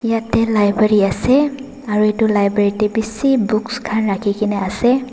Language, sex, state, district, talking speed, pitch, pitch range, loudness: Nagamese, female, Nagaland, Dimapur, 140 wpm, 215 Hz, 205-240 Hz, -16 LUFS